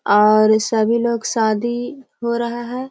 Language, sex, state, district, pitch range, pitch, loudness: Hindi, female, Bihar, Jahanabad, 220-240 Hz, 235 Hz, -18 LUFS